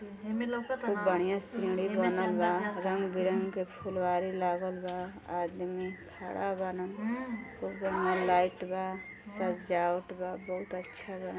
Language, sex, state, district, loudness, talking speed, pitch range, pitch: Bhojpuri, female, Uttar Pradesh, Gorakhpur, -33 LUFS, 135 wpm, 180-195 Hz, 185 Hz